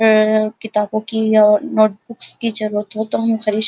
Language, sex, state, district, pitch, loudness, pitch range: Hindi, female, Uttar Pradesh, Muzaffarnagar, 215 Hz, -16 LUFS, 215-220 Hz